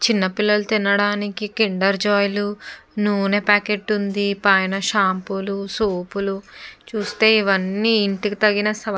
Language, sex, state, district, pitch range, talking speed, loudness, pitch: Telugu, female, Andhra Pradesh, Chittoor, 195-210 Hz, 125 wpm, -19 LUFS, 205 Hz